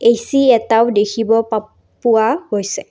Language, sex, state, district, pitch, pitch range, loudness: Assamese, female, Assam, Kamrup Metropolitan, 225 Hz, 210-235 Hz, -15 LUFS